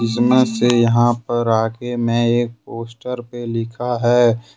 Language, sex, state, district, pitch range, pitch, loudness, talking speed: Hindi, male, Jharkhand, Ranchi, 115-120 Hz, 120 Hz, -18 LUFS, 145 wpm